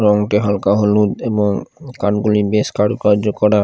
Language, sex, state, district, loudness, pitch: Bengali, male, Odisha, Khordha, -16 LUFS, 105 Hz